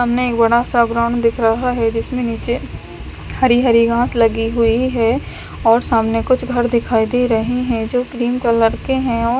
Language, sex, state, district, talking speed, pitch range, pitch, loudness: Hindi, female, Chandigarh, Chandigarh, 190 wpm, 230-245 Hz, 235 Hz, -16 LUFS